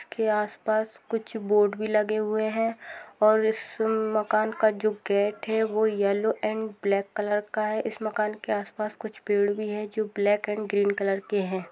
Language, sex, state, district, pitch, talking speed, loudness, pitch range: Hindi, female, Rajasthan, Churu, 215 Hz, 195 wpm, -26 LUFS, 205-220 Hz